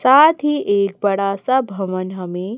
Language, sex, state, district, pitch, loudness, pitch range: Hindi, female, Chhattisgarh, Raipur, 200 Hz, -17 LUFS, 190-260 Hz